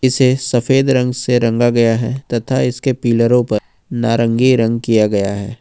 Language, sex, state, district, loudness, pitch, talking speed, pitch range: Hindi, male, Jharkhand, Ranchi, -15 LUFS, 120 Hz, 170 wpm, 115-130 Hz